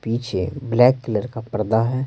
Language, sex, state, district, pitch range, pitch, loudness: Hindi, male, Bihar, Patna, 110-125 Hz, 115 Hz, -21 LUFS